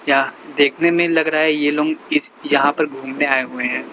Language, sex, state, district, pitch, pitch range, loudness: Hindi, male, Uttar Pradesh, Lalitpur, 150 Hz, 135-160 Hz, -17 LUFS